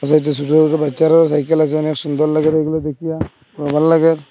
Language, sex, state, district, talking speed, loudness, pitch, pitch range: Bengali, male, Assam, Hailakandi, 165 wpm, -15 LUFS, 155 Hz, 150-160 Hz